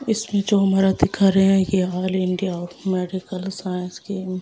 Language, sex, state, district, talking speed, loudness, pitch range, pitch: Hindi, female, Delhi, New Delhi, 165 wpm, -21 LUFS, 185-195 Hz, 190 Hz